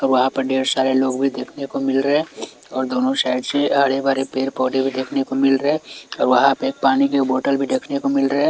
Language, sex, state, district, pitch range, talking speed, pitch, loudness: Hindi, male, Chhattisgarh, Raipur, 130-140 Hz, 235 wpm, 135 Hz, -19 LUFS